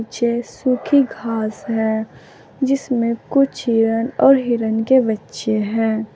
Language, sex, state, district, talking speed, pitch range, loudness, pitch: Hindi, female, Uttar Pradesh, Saharanpur, 105 wpm, 220-255 Hz, -18 LUFS, 230 Hz